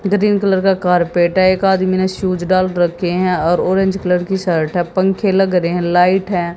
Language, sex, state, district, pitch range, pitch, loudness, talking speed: Hindi, female, Haryana, Jhajjar, 175-190 Hz, 185 Hz, -15 LUFS, 220 wpm